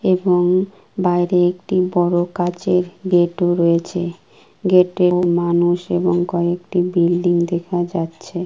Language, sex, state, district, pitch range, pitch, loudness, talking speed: Bengali, female, West Bengal, Kolkata, 175-180 Hz, 175 Hz, -18 LUFS, 100 wpm